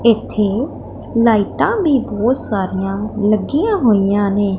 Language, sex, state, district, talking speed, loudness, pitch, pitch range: Punjabi, female, Punjab, Pathankot, 105 wpm, -16 LUFS, 210 Hz, 200-240 Hz